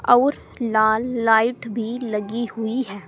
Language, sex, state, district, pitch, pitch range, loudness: Hindi, female, Uttar Pradesh, Saharanpur, 230 Hz, 220-245 Hz, -21 LUFS